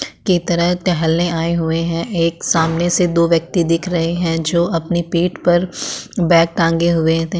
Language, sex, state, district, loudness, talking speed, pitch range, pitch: Hindi, female, Uttarakhand, Tehri Garhwal, -16 LUFS, 180 wpm, 165-175 Hz, 170 Hz